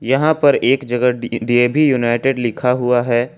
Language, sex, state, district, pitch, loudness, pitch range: Hindi, male, Jharkhand, Ranchi, 125 Hz, -16 LUFS, 120-135 Hz